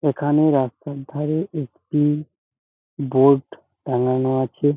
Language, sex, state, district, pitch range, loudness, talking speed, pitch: Bengali, male, West Bengal, Jhargram, 130-150 Hz, -21 LUFS, 90 wpm, 145 Hz